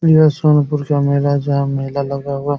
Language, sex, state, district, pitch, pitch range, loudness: Hindi, male, Chhattisgarh, Raigarh, 145 Hz, 140-150 Hz, -16 LUFS